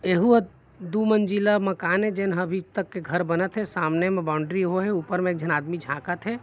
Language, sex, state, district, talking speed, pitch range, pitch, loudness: Chhattisgarhi, male, Chhattisgarh, Bilaspur, 225 wpm, 170-200 Hz, 185 Hz, -24 LUFS